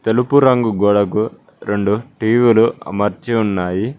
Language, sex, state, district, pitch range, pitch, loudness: Telugu, male, Telangana, Mahabubabad, 105-120 Hz, 110 Hz, -16 LUFS